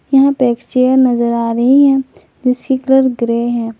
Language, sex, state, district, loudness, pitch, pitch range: Hindi, female, Jharkhand, Garhwa, -13 LUFS, 255 Hz, 235-265 Hz